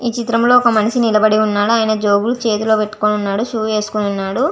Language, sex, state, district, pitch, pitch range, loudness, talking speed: Telugu, female, Andhra Pradesh, Visakhapatnam, 215 Hz, 210-230 Hz, -15 LUFS, 215 wpm